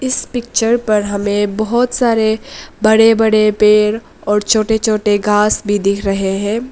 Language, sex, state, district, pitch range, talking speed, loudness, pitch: Hindi, female, Arunachal Pradesh, Lower Dibang Valley, 205-225 Hz, 150 wpm, -14 LUFS, 215 Hz